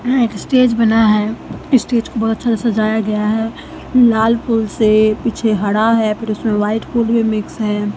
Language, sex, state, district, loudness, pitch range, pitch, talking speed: Hindi, female, Bihar, Katihar, -15 LUFS, 215-230 Hz, 225 Hz, 195 wpm